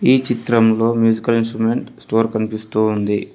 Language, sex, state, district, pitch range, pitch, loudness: Telugu, male, Telangana, Mahabubabad, 110-115 Hz, 115 Hz, -17 LUFS